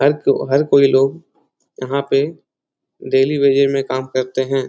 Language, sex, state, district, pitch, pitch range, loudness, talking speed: Hindi, male, Bihar, Lakhisarai, 135 Hz, 135-140 Hz, -16 LUFS, 165 wpm